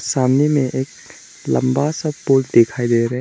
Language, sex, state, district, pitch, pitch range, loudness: Hindi, male, Arunachal Pradesh, Lower Dibang Valley, 130 Hz, 120-145 Hz, -17 LUFS